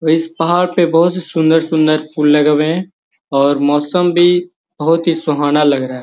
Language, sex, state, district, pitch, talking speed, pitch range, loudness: Magahi, male, Bihar, Gaya, 160 Hz, 200 wpm, 150-175 Hz, -14 LUFS